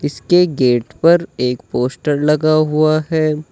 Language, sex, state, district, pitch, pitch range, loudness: Hindi, male, Uttar Pradesh, Saharanpur, 150 Hz, 130-155 Hz, -15 LUFS